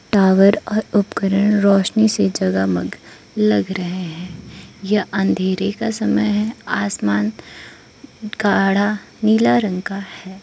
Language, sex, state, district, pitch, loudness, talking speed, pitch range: Hindi, female, Arunachal Pradesh, Lower Dibang Valley, 195 Hz, -18 LUFS, 110 wpm, 180-210 Hz